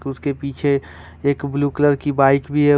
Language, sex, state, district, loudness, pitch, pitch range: Hindi, male, Jharkhand, Ranchi, -19 LUFS, 140 Hz, 140-145 Hz